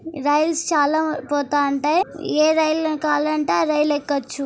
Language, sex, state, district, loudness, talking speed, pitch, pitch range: Telugu, female, Andhra Pradesh, Anantapur, -20 LUFS, 135 wpm, 300 Hz, 290-315 Hz